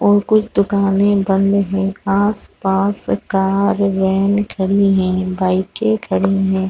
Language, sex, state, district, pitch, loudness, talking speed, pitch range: Hindi, female, Chhattisgarh, Raigarh, 195 Hz, -16 LUFS, 115 wpm, 190-200 Hz